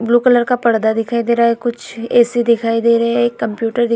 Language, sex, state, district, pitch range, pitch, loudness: Hindi, female, Bihar, Vaishali, 230-240 Hz, 235 Hz, -15 LUFS